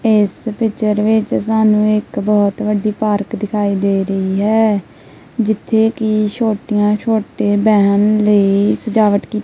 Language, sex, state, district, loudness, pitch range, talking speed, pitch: Punjabi, female, Punjab, Kapurthala, -15 LUFS, 205-220 Hz, 125 wpm, 210 Hz